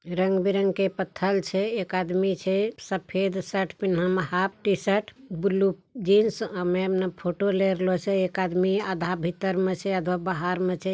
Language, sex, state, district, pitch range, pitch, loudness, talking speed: Angika, male, Bihar, Bhagalpur, 185-195 Hz, 190 Hz, -26 LUFS, 155 wpm